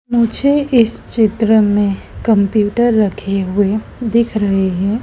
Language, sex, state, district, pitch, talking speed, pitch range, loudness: Hindi, female, Madhya Pradesh, Dhar, 215 Hz, 120 wpm, 200-235 Hz, -15 LUFS